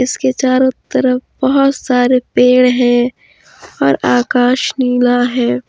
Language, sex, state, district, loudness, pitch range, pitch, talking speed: Hindi, female, Jharkhand, Deoghar, -13 LUFS, 245-260 Hz, 250 Hz, 115 wpm